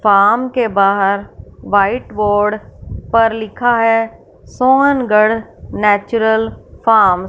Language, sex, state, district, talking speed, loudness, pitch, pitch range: Hindi, female, Punjab, Fazilka, 100 wpm, -14 LUFS, 220 Hz, 205-230 Hz